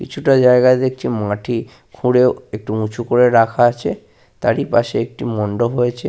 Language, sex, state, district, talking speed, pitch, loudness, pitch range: Bengali, male, Jharkhand, Sahebganj, 155 wpm, 120 Hz, -16 LUFS, 115-125 Hz